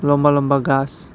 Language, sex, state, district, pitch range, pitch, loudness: Bengali, male, Tripura, West Tripura, 140-145 Hz, 145 Hz, -17 LUFS